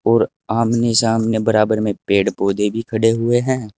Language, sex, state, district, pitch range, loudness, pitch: Hindi, male, Uttar Pradesh, Saharanpur, 105-115 Hz, -17 LUFS, 115 Hz